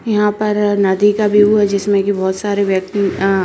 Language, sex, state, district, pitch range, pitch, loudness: Hindi, female, Uttarakhand, Uttarkashi, 195-210 Hz, 205 Hz, -14 LUFS